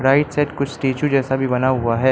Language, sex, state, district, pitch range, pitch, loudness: Hindi, male, Arunachal Pradesh, Lower Dibang Valley, 130-145 Hz, 135 Hz, -19 LUFS